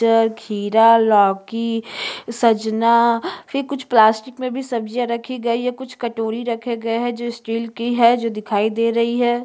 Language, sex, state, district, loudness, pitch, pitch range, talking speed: Hindi, female, Chhattisgarh, Jashpur, -19 LUFS, 230 Hz, 225-240 Hz, 170 wpm